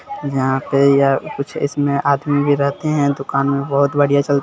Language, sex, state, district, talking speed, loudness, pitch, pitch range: Hindi, male, Bihar, Sitamarhi, 205 wpm, -17 LUFS, 140 Hz, 140-145 Hz